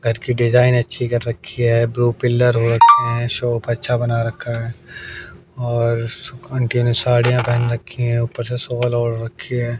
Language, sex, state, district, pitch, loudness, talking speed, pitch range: Hindi, male, Haryana, Jhajjar, 120 Hz, -18 LUFS, 190 wpm, 115-125 Hz